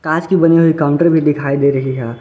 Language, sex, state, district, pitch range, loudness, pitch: Hindi, male, Jharkhand, Garhwa, 140-165 Hz, -13 LUFS, 150 Hz